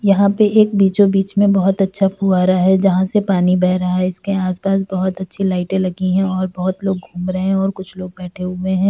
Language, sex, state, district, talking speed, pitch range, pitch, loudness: Hindi, female, Uttar Pradesh, Deoria, 235 wpm, 185-195 Hz, 190 Hz, -16 LUFS